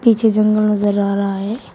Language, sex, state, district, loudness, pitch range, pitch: Hindi, female, Uttar Pradesh, Shamli, -16 LUFS, 200-220 Hz, 210 Hz